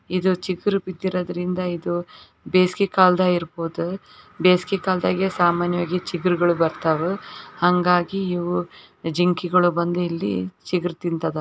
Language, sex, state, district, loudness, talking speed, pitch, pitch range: Kannada, female, Karnataka, Bijapur, -22 LUFS, 105 wpm, 180 Hz, 175-185 Hz